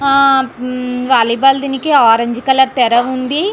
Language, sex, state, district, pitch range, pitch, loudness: Telugu, female, Andhra Pradesh, Anantapur, 240-270 Hz, 260 Hz, -12 LUFS